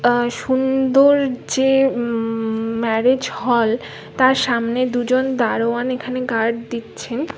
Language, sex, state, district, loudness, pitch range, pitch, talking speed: Bengali, female, West Bengal, Kolkata, -18 LUFS, 230-260 Hz, 245 Hz, 105 wpm